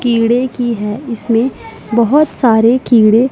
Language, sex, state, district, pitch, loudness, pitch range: Hindi, female, Punjab, Pathankot, 235 Hz, -13 LUFS, 225-250 Hz